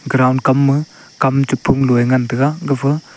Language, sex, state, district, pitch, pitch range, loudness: Wancho, male, Arunachal Pradesh, Longding, 135 Hz, 130-140 Hz, -15 LUFS